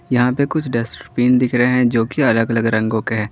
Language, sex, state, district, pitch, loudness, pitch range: Hindi, male, Jharkhand, Garhwa, 120 Hz, -17 LUFS, 115-125 Hz